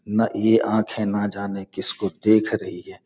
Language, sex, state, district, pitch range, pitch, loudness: Hindi, male, Bihar, Gopalganj, 100-110 Hz, 105 Hz, -22 LUFS